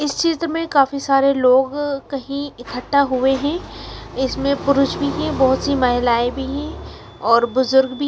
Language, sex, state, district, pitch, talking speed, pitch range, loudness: Hindi, female, Chandigarh, Chandigarh, 275 Hz, 165 wpm, 260-285 Hz, -18 LUFS